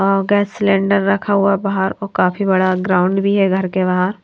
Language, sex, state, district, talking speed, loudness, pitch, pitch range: Hindi, female, Haryana, Charkhi Dadri, 210 wpm, -16 LUFS, 195 Hz, 185-200 Hz